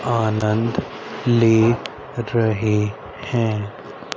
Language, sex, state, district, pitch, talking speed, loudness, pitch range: Hindi, male, Haryana, Rohtak, 110 Hz, 55 wpm, -20 LUFS, 105-115 Hz